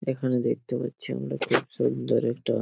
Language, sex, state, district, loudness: Bengali, male, West Bengal, Paschim Medinipur, -27 LUFS